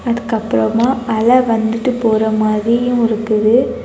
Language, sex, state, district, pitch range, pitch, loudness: Tamil, female, Tamil Nadu, Kanyakumari, 220-245 Hz, 230 Hz, -15 LUFS